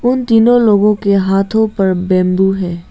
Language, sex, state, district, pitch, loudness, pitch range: Hindi, female, Arunachal Pradesh, Lower Dibang Valley, 200 Hz, -12 LUFS, 190-220 Hz